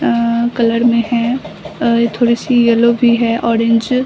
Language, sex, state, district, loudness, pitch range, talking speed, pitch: Hindi, female, Bihar, Samastipur, -13 LUFS, 230-240 Hz, 190 wpm, 235 Hz